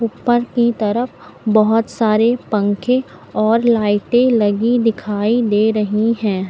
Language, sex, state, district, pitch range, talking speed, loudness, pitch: Hindi, female, Uttar Pradesh, Lucknow, 210-235 Hz, 120 wpm, -16 LUFS, 220 Hz